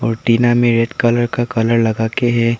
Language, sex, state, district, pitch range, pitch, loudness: Hindi, male, Arunachal Pradesh, Papum Pare, 115-120 Hz, 115 Hz, -15 LUFS